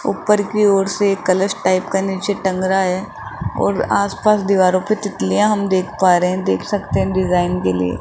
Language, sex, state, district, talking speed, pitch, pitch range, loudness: Hindi, male, Rajasthan, Jaipur, 215 wpm, 190 Hz, 185-205 Hz, -17 LUFS